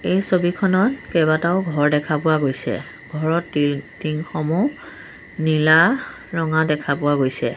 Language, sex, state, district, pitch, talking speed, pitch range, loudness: Assamese, male, Assam, Sonitpur, 155 Hz, 125 wpm, 150-180 Hz, -20 LUFS